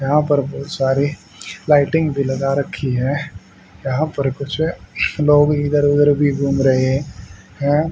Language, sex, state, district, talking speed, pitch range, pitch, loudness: Hindi, male, Haryana, Rohtak, 150 wpm, 135-145 Hz, 140 Hz, -18 LUFS